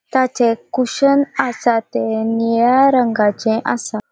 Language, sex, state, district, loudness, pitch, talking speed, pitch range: Konkani, female, Goa, North and South Goa, -16 LUFS, 235 Hz, 100 wpm, 225-260 Hz